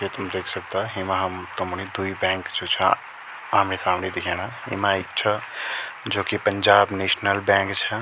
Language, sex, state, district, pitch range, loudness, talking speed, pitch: Garhwali, male, Uttarakhand, Tehri Garhwal, 95-100 Hz, -23 LUFS, 165 wpm, 95 Hz